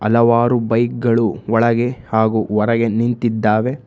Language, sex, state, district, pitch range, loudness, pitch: Kannada, male, Karnataka, Bangalore, 110-120 Hz, -16 LUFS, 115 Hz